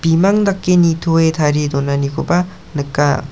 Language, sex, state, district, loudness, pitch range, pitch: Garo, male, Meghalaya, South Garo Hills, -15 LUFS, 145-175 Hz, 160 Hz